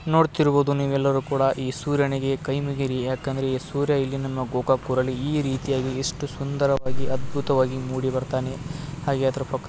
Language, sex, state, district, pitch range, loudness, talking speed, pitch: Kannada, male, Karnataka, Belgaum, 130-140 Hz, -24 LUFS, 150 wpm, 135 Hz